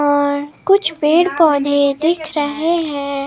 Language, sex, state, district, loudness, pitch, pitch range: Hindi, male, Himachal Pradesh, Shimla, -16 LUFS, 295 Hz, 285-330 Hz